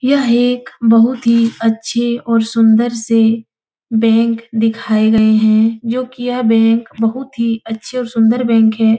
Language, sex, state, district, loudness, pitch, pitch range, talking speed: Hindi, female, Uttar Pradesh, Etah, -14 LUFS, 230 Hz, 225-240 Hz, 155 wpm